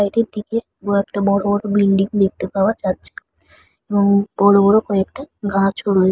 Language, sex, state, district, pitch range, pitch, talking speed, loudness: Bengali, female, West Bengal, Purulia, 195-205 Hz, 200 Hz, 145 wpm, -17 LUFS